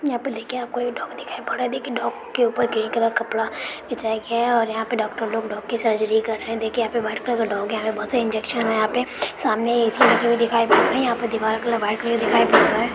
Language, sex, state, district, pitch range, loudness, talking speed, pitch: Hindi, female, West Bengal, Malda, 220-235 Hz, -21 LUFS, 290 wpm, 230 Hz